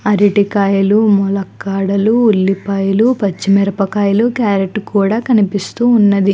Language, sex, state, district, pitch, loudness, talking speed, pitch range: Telugu, female, Andhra Pradesh, Chittoor, 200 Hz, -13 LUFS, 55 wpm, 195-215 Hz